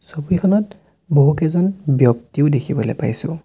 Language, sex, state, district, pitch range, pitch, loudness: Assamese, male, Assam, Sonitpur, 140-180 Hz, 160 Hz, -17 LUFS